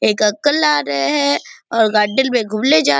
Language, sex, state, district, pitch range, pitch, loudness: Hindi, female, Bihar, Purnia, 210-285 Hz, 220 Hz, -15 LUFS